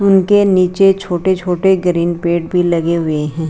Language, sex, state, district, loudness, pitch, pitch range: Hindi, female, Rajasthan, Jaipur, -14 LUFS, 180 Hz, 170-190 Hz